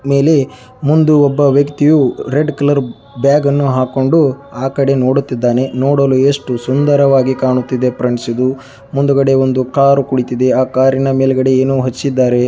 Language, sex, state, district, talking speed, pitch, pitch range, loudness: Kannada, male, Karnataka, Chamarajanagar, 110 wpm, 135 Hz, 130-140 Hz, -13 LUFS